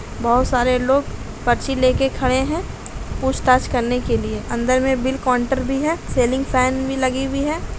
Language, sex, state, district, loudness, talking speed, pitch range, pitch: Hindi, female, Bihar, Begusarai, -19 LUFS, 175 wpm, 250-270 Hz, 260 Hz